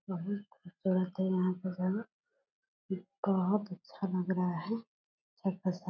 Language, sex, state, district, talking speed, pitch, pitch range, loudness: Hindi, female, Bihar, Purnia, 155 wpm, 190 Hz, 185-205 Hz, -35 LUFS